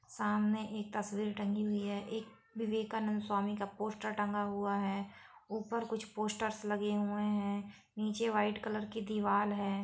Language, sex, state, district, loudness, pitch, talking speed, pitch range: Hindi, female, Bihar, Saran, -36 LUFS, 210 Hz, 160 wpm, 205-215 Hz